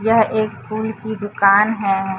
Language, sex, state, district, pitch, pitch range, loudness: Hindi, female, Chhattisgarh, Raipur, 215 Hz, 200-220 Hz, -18 LUFS